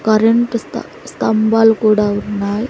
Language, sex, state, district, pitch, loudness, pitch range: Telugu, female, Andhra Pradesh, Sri Satya Sai, 220 Hz, -14 LUFS, 210-225 Hz